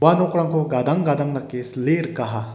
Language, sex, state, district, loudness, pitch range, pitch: Garo, male, Meghalaya, West Garo Hills, -21 LUFS, 125-165 Hz, 145 Hz